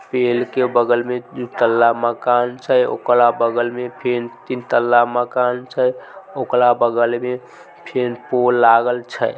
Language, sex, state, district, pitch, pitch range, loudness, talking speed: Maithili, male, Bihar, Samastipur, 120 Hz, 120-125 Hz, -17 LUFS, 145 wpm